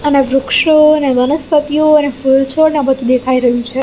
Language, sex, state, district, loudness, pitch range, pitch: Gujarati, female, Gujarat, Gandhinagar, -11 LUFS, 260-300 Hz, 275 Hz